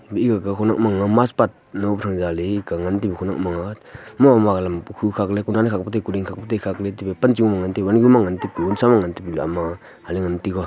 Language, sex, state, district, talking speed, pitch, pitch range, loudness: Wancho, male, Arunachal Pradesh, Longding, 80 wpm, 100 Hz, 90-110 Hz, -20 LUFS